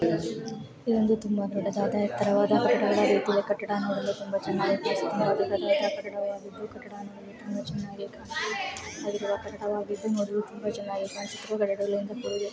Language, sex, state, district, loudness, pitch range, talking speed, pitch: Kannada, female, Karnataka, Chamarajanagar, -28 LUFS, 200-210 Hz, 65 wpm, 205 Hz